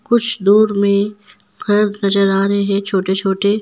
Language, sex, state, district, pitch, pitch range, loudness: Hindi, female, Jharkhand, Ranchi, 200 Hz, 195-210 Hz, -15 LUFS